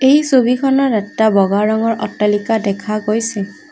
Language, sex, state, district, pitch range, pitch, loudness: Assamese, female, Assam, Kamrup Metropolitan, 205-245 Hz, 220 Hz, -15 LUFS